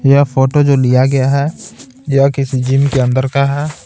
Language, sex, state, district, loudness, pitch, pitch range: Hindi, male, Bihar, Patna, -13 LUFS, 135 Hz, 130-140 Hz